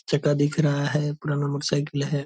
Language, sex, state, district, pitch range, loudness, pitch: Hindi, male, Bihar, Purnia, 145-150 Hz, -24 LUFS, 145 Hz